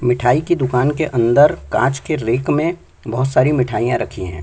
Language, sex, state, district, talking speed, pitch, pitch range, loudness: Hindi, male, Chhattisgarh, Sukma, 190 wpm, 130 Hz, 120-150 Hz, -17 LUFS